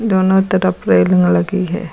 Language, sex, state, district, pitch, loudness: Hindi, female, Uttar Pradesh, Lucknow, 185 Hz, -14 LUFS